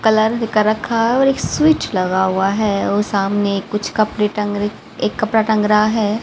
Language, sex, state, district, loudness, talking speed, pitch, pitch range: Hindi, female, Haryana, Rohtak, -17 LUFS, 200 wpm, 210 Hz, 205-220 Hz